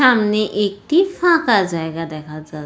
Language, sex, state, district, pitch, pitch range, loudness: Bengali, female, West Bengal, Jalpaiguri, 205 Hz, 160-255 Hz, -17 LUFS